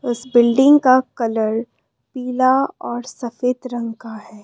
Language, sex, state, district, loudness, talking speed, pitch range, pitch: Hindi, female, Assam, Kamrup Metropolitan, -17 LUFS, 135 wpm, 230-255 Hz, 245 Hz